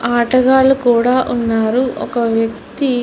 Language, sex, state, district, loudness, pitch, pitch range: Telugu, female, Andhra Pradesh, Chittoor, -14 LUFS, 245 Hz, 235-255 Hz